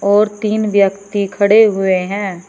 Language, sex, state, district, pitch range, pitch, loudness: Hindi, female, Uttar Pradesh, Shamli, 195-210 Hz, 200 Hz, -14 LUFS